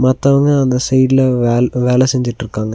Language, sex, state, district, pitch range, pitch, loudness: Tamil, male, Tamil Nadu, Nilgiris, 120-130 Hz, 130 Hz, -13 LUFS